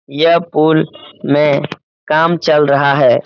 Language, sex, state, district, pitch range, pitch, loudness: Hindi, male, Uttar Pradesh, Etah, 145-165 Hz, 150 Hz, -13 LUFS